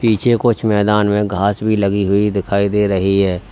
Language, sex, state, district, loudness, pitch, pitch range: Hindi, male, Uttar Pradesh, Lalitpur, -15 LUFS, 105 Hz, 100-105 Hz